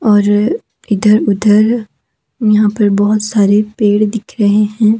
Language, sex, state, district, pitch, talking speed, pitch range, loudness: Hindi, female, Himachal Pradesh, Shimla, 210 Hz, 130 wpm, 205-215 Hz, -12 LUFS